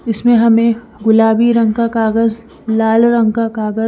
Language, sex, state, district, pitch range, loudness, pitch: Hindi, female, Punjab, Fazilka, 220-230 Hz, -13 LUFS, 225 Hz